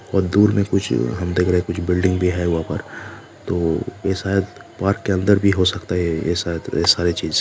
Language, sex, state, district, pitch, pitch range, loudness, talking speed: Hindi, male, Jharkhand, Jamtara, 90 Hz, 85-100 Hz, -19 LUFS, 210 wpm